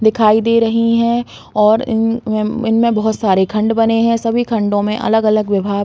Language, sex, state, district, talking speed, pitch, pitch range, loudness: Hindi, female, Chhattisgarh, Bastar, 185 wpm, 225 Hz, 215-230 Hz, -14 LUFS